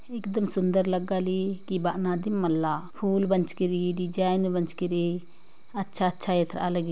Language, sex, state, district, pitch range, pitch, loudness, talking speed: Sadri, female, Chhattisgarh, Jashpur, 175-190 Hz, 185 Hz, -27 LUFS, 145 wpm